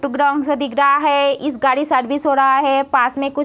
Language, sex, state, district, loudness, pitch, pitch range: Hindi, female, Uttar Pradesh, Deoria, -16 LUFS, 280 Hz, 270-285 Hz